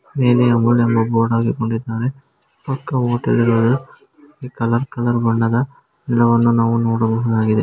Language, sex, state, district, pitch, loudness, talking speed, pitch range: Kannada, male, Karnataka, Dharwad, 120 Hz, -17 LUFS, 95 wpm, 115-125 Hz